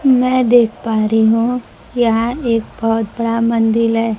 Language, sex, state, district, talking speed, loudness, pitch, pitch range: Hindi, female, Bihar, Kaimur, 160 wpm, -15 LUFS, 230 Hz, 225-240 Hz